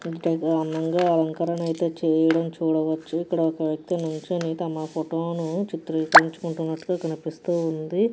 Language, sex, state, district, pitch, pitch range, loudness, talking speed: Telugu, female, Andhra Pradesh, Krishna, 165 Hz, 160-170 Hz, -24 LUFS, 110 wpm